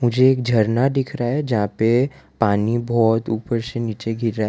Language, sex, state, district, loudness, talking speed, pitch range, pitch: Hindi, male, Gujarat, Valsad, -20 LUFS, 215 wpm, 110-125 Hz, 115 Hz